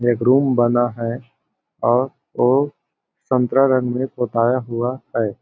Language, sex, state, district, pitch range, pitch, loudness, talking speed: Hindi, male, Chhattisgarh, Balrampur, 120-130 Hz, 125 Hz, -19 LUFS, 135 wpm